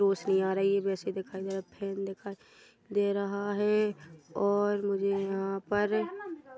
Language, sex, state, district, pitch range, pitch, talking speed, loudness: Hindi, female, Chhattisgarh, Bilaspur, 195-205 Hz, 200 Hz, 165 wpm, -31 LUFS